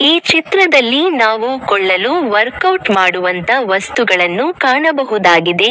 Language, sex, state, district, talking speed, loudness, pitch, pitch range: Kannada, female, Karnataka, Koppal, 75 wpm, -12 LUFS, 230 Hz, 185-295 Hz